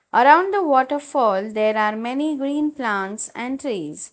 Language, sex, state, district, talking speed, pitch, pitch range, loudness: English, female, Gujarat, Valsad, 145 wpm, 260 Hz, 215-290 Hz, -20 LUFS